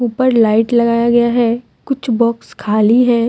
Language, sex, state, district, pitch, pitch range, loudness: Hindi, female, Jharkhand, Deoghar, 235 Hz, 230-240 Hz, -14 LUFS